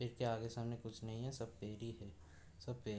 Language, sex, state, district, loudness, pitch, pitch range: Hindi, male, Uttar Pradesh, Budaun, -47 LUFS, 115 Hz, 105-120 Hz